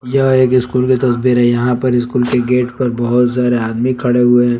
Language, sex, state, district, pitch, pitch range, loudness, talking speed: Hindi, male, Jharkhand, Palamu, 125 Hz, 120-125 Hz, -13 LUFS, 235 wpm